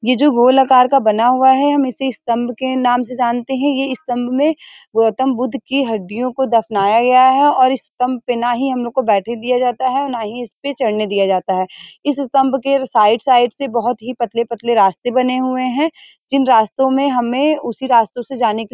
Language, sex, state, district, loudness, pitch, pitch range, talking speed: Hindi, female, Uttar Pradesh, Varanasi, -15 LUFS, 250 Hz, 235-265 Hz, 225 wpm